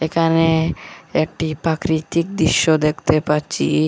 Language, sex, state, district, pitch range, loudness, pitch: Bengali, male, Assam, Hailakandi, 155-165 Hz, -18 LUFS, 160 Hz